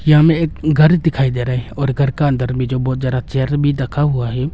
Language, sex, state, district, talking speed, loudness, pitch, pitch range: Hindi, male, Arunachal Pradesh, Longding, 265 wpm, -16 LUFS, 135 Hz, 130-150 Hz